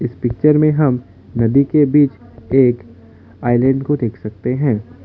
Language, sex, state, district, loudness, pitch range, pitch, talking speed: Hindi, male, Assam, Kamrup Metropolitan, -16 LUFS, 115-140 Hz, 120 Hz, 155 wpm